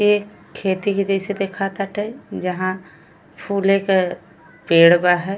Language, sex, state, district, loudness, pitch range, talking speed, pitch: Bhojpuri, female, Uttar Pradesh, Gorakhpur, -19 LUFS, 175-200 Hz, 135 wpm, 190 Hz